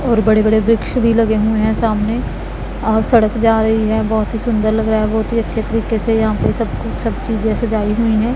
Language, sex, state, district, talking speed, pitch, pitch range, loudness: Hindi, female, Punjab, Pathankot, 235 wpm, 220 Hz, 220-230 Hz, -16 LUFS